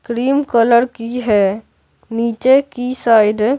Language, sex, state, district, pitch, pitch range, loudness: Hindi, male, Bihar, Patna, 235 Hz, 225-255 Hz, -15 LUFS